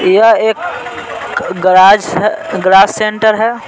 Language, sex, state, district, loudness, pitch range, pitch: Hindi, male, Bihar, Patna, -10 LUFS, 190-225 Hz, 215 Hz